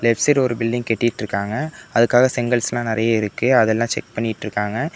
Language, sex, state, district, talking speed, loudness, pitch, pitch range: Tamil, male, Tamil Nadu, Namakkal, 170 wpm, -19 LUFS, 115 Hz, 110-125 Hz